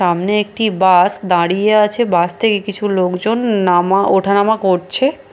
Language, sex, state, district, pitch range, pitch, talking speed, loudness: Bengali, female, Bihar, Katihar, 180-215 Hz, 200 Hz, 160 wpm, -14 LUFS